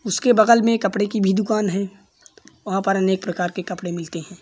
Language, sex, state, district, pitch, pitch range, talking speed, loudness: Hindi, male, Uttar Pradesh, Varanasi, 195 Hz, 180-210 Hz, 215 wpm, -20 LUFS